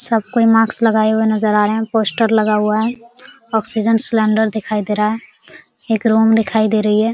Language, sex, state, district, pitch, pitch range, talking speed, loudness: Hindi, female, Uttar Pradesh, Hamirpur, 220 Hz, 215-225 Hz, 200 wpm, -15 LUFS